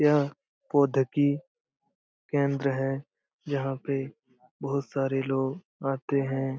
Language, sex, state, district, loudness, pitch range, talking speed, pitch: Hindi, male, Bihar, Jamui, -29 LUFS, 135-140 Hz, 110 wpm, 140 Hz